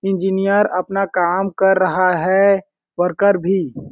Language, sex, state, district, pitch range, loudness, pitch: Hindi, male, Chhattisgarh, Balrampur, 180-195 Hz, -17 LUFS, 190 Hz